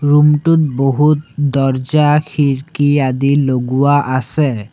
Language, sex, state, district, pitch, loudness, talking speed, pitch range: Assamese, male, Assam, Sonitpur, 145 Hz, -14 LUFS, 100 wpm, 135-150 Hz